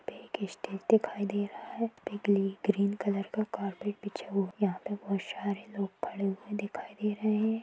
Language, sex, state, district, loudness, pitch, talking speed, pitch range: Hindi, male, Maharashtra, Sindhudurg, -33 LUFS, 205 Hz, 180 wpm, 195-210 Hz